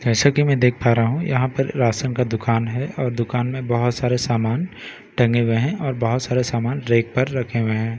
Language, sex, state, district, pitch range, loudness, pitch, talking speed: Hindi, male, Bihar, Katihar, 115-130 Hz, -20 LUFS, 125 Hz, 235 wpm